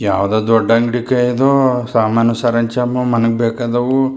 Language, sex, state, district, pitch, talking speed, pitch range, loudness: Kannada, male, Karnataka, Chamarajanagar, 120 Hz, 130 wpm, 115-125 Hz, -15 LUFS